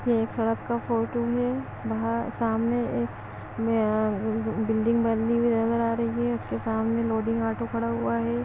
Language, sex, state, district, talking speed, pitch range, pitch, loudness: Hindi, female, Chhattisgarh, Balrampur, 170 wpm, 215-230 Hz, 225 Hz, -26 LUFS